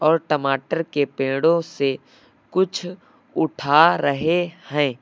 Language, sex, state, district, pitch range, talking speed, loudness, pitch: Hindi, male, Uttar Pradesh, Lucknow, 140-175 Hz, 105 wpm, -21 LUFS, 160 Hz